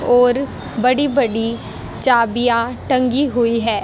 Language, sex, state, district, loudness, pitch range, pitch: Hindi, female, Haryana, Jhajjar, -17 LUFS, 230-260 Hz, 245 Hz